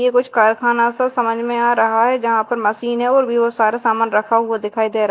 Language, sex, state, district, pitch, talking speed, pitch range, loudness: Hindi, female, Madhya Pradesh, Dhar, 235 Hz, 245 wpm, 225-240 Hz, -16 LUFS